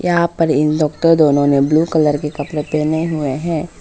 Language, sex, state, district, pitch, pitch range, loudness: Hindi, female, Arunachal Pradesh, Papum Pare, 155 Hz, 150-165 Hz, -15 LUFS